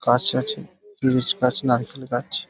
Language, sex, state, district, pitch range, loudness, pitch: Bengali, male, West Bengal, Paschim Medinipur, 120-145 Hz, -23 LUFS, 130 Hz